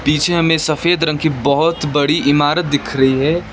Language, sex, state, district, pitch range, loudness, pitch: Hindi, male, West Bengal, Darjeeling, 145-165 Hz, -15 LUFS, 150 Hz